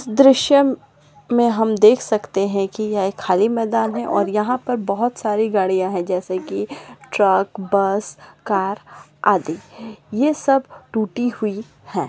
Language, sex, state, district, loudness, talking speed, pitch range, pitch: Hindi, female, Chhattisgarh, Sarguja, -19 LUFS, 150 wpm, 195-230 Hz, 210 Hz